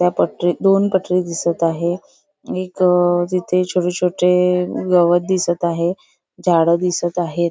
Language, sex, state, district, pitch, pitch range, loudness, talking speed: Marathi, female, Maharashtra, Nagpur, 180 Hz, 175-180 Hz, -17 LUFS, 130 wpm